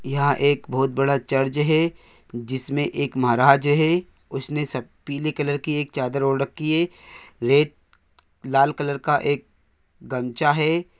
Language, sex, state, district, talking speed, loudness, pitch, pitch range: Hindi, male, Andhra Pradesh, Anantapur, 140 wpm, -22 LUFS, 140 Hz, 135-150 Hz